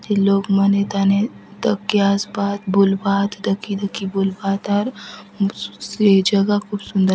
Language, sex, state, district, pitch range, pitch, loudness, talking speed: Halbi, female, Chhattisgarh, Bastar, 195-205 Hz, 200 Hz, -19 LUFS, 160 wpm